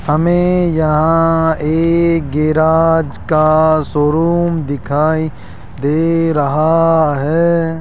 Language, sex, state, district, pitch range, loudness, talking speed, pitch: Hindi, male, Rajasthan, Jaipur, 150-165 Hz, -13 LUFS, 75 wpm, 160 Hz